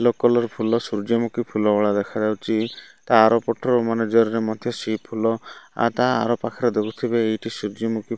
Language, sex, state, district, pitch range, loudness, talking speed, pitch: Odia, male, Odisha, Malkangiri, 110-120 Hz, -22 LUFS, 140 wpm, 115 Hz